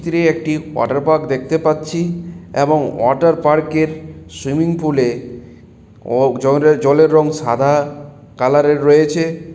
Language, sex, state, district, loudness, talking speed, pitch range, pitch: Bengali, male, West Bengal, Malda, -15 LUFS, 120 wpm, 140-160 Hz, 155 Hz